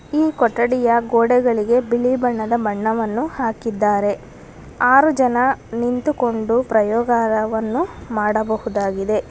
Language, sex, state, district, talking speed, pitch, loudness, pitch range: Kannada, female, Karnataka, Bangalore, 75 wpm, 235 Hz, -18 LUFS, 220-250 Hz